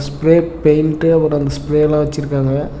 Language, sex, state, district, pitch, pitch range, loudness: Tamil, male, Tamil Nadu, Namakkal, 150 Hz, 145-155 Hz, -15 LUFS